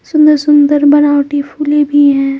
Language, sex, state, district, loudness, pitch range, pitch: Hindi, female, Bihar, Patna, -10 LUFS, 285-295 Hz, 290 Hz